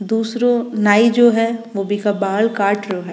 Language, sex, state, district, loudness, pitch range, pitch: Rajasthani, female, Rajasthan, Nagaur, -16 LUFS, 200-230 Hz, 220 Hz